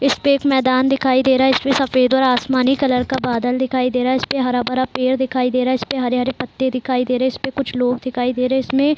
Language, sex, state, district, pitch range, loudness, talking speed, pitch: Hindi, female, Bihar, Gopalganj, 250-265 Hz, -17 LUFS, 275 wpm, 260 Hz